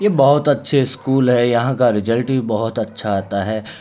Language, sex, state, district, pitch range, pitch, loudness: Hindi, male, Uttar Pradesh, Hamirpur, 110-135 Hz, 125 Hz, -17 LUFS